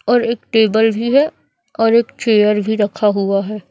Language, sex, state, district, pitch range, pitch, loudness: Hindi, female, Chhattisgarh, Raipur, 210-235 Hz, 220 Hz, -15 LUFS